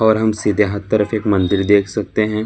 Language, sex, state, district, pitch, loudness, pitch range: Hindi, male, Karnataka, Bangalore, 105 Hz, -17 LUFS, 100-110 Hz